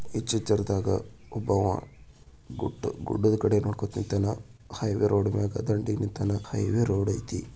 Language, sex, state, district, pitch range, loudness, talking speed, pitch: Kannada, male, Karnataka, Bijapur, 100-110 Hz, -28 LUFS, 120 wpm, 105 Hz